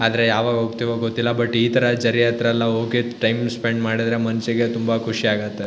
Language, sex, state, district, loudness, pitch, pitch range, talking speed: Kannada, male, Karnataka, Shimoga, -20 LUFS, 115 Hz, 115-120 Hz, 170 wpm